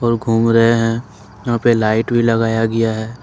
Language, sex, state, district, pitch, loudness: Hindi, male, Jharkhand, Ranchi, 115 Hz, -16 LUFS